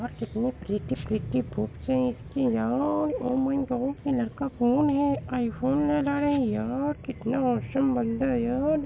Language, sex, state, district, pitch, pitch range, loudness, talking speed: Hindi, female, Bihar, Supaul, 255 Hz, 235-280 Hz, -27 LUFS, 155 wpm